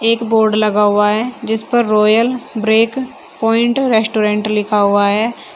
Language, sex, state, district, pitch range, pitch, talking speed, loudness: Hindi, female, Uttar Pradesh, Shamli, 210-235 Hz, 220 Hz, 150 wpm, -14 LUFS